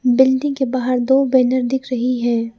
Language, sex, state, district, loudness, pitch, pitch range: Hindi, female, Arunachal Pradesh, Lower Dibang Valley, -17 LUFS, 255 Hz, 245-265 Hz